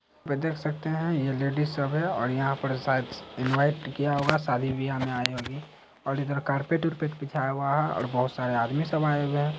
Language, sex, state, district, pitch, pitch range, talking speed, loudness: Hindi, male, Bihar, Saharsa, 140 Hz, 130-150 Hz, 220 wpm, -28 LUFS